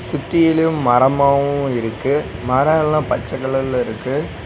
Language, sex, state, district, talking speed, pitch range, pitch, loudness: Tamil, male, Tamil Nadu, Nilgiris, 95 wpm, 125-155 Hz, 135 Hz, -17 LUFS